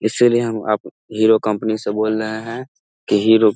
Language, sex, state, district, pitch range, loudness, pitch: Hindi, male, Bihar, Samastipur, 110-115 Hz, -18 LUFS, 110 Hz